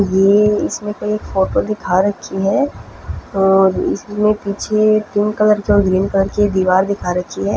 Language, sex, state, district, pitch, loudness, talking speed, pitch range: Hindi, female, Punjab, Fazilka, 200 Hz, -16 LUFS, 150 wpm, 190-210 Hz